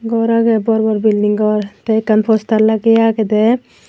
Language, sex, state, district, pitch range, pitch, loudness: Chakma, female, Tripura, Unakoti, 215-225 Hz, 220 Hz, -14 LUFS